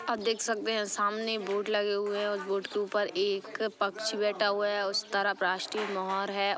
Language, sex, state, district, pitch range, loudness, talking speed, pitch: Hindi, female, Chhattisgarh, Bastar, 200-215 Hz, -30 LUFS, 200 wpm, 205 Hz